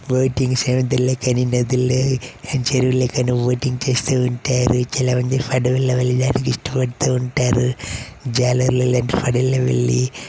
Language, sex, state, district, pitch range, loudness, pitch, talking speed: Telugu, male, Andhra Pradesh, Chittoor, 125-130 Hz, -19 LUFS, 125 Hz, 110 wpm